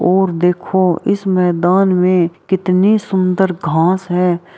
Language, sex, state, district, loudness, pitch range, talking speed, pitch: Hindi, female, Bihar, Araria, -14 LUFS, 175-190 Hz, 120 wpm, 180 Hz